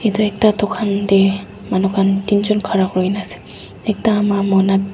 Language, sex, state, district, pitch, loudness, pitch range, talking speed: Nagamese, female, Nagaland, Dimapur, 200 Hz, -17 LUFS, 195-210 Hz, 135 wpm